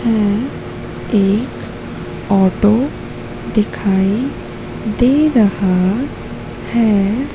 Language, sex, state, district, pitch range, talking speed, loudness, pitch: Hindi, female, Madhya Pradesh, Katni, 200-240 Hz, 55 wpm, -16 LUFS, 215 Hz